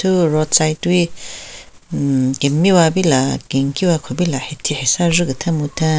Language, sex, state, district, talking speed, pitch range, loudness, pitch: Rengma, female, Nagaland, Kohima, 130 wpm, 140-175 Hz, -16 LUFS, 155 Hz